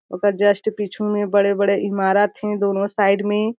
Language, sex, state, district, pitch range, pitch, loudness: Chhattisgarhi, female, Chhattisgarh, Jashpur, 200-205 Hz, 205 Hz, -19 LUFS